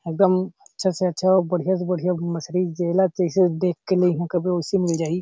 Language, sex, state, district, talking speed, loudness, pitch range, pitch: Chhattisgarhi, male, Chhattisgarh, Sarguja, 220 wpm, -22 LUFS, 175-185 Hz, 180 Hz